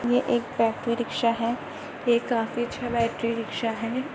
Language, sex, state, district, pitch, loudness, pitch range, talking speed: Hindi, female, Uttar Pradesh, Muzaffarnagar, 235 Hz, -26 LUFS, 230-240 Hz, 160 wpm